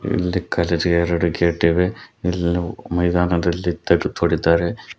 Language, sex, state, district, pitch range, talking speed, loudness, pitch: Kannada, male, Karnataka, Koppal, 85-90 Hz, 110 wpm, -20 LUFS, 85 Hz